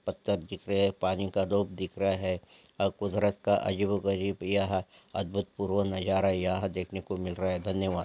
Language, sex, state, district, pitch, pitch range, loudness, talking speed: Angika, male, Bihar, Samastipur, 95 Hz, 95-100 Hz, -30 LUFS, 195 wpm